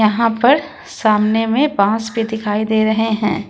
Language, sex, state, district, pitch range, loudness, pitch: Hindi, female, Jharkhand, Ranchi, 215-230 Hz, -16 LUFS, 220 Hz